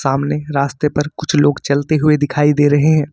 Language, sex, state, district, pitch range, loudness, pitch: Hindi, male, Jharkhand, Ranchi, 145-150 Hz, -15 LUFS, 145 Hz